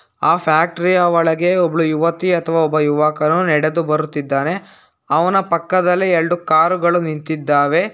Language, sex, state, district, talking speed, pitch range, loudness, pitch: Kannada, male, Karnataka, Bangalore, 130 wpm, 155-175 Hz, -16 LUFS, 165 Hz